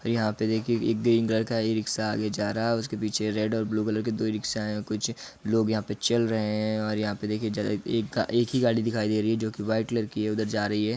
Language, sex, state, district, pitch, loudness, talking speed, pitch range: Hindi, male, Uttar Pradesh, Muzaffarnagar, 110 Hz, -27 LUFS, 300 wpm, 105-115 Hz